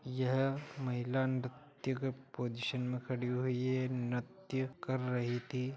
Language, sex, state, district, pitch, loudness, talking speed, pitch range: Hindi, male, Bihar, Bhagalpur, 130 Hz, -37 LUFS, 135 wpm, 125-130 Hz